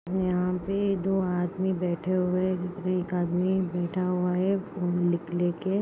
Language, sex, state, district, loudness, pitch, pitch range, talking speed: Hindi, female, Chhattisgarh, Rajnandgaon, -28 LUFS, 180 Hz, 180-190 Hz, 135 wpm